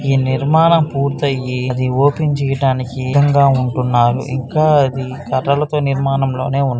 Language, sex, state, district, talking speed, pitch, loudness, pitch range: Telugu, male, Andhra Pradesh, Srikakulam, 125 wpm, 135 Hz, -15 LUFS, 130-140 Hz